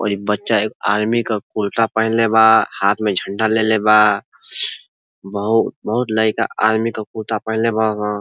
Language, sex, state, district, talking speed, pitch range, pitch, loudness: Bhojpuri, male, Uttar Pradesh, Ghazipur, 175 wpm, 105-110 Hz, 110 Hz, -17 LUFS